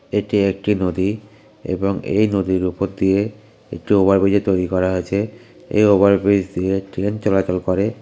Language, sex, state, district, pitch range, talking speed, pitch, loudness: Bengali, male, West Bengal, North 24 Parganas, 95-105 Hz, 165 wpm, 100 Hz, -18 LUFS